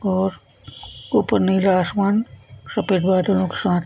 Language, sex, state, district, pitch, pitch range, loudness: Hindi, female, Goa, North and South Goa, 190 Hz, 185-200 Hz, -20 LUFS